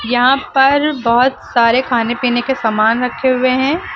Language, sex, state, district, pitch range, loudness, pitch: Hindi, female, Uttar Pradesh, Lucknow, 235-265 Hz, -14 LUFS, 250 Hz